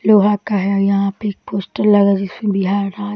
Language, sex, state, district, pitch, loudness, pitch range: Hindi, female, Bihar, Bhagalpur, 200 Hz, -16 LUFS, 195-205 Hz